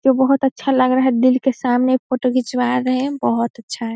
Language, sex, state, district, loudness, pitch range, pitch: Hindi, female, Bihar, Saharsa, -17 LUFS, 245-260 Hz, 255 Hz